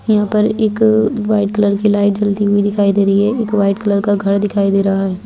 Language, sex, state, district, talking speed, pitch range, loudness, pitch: Hindi, female, Bihar, Saharsa, 250 wpm, 200-215 Hz, -14 LUFS, 205 Hz